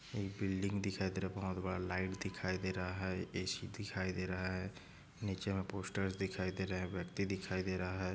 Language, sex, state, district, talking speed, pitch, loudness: Hindi, male, Maharashtra, Nagpur, 205 wpm, 95 Hz, -40 LUFS